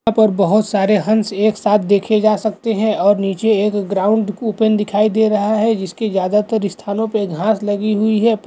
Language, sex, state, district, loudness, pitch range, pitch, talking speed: Hindi, male, Uttar Pradesh, Hamirpur, -16 LUFS, 205-220 Hz, 210 Hz, 200 wpm